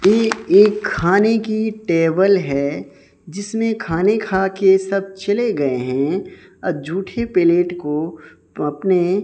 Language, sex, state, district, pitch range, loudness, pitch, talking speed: Hindi, male, Odisha, Sambalpur, 165-210 Hz, -18 LUFS, 190 Hz, 115 wpm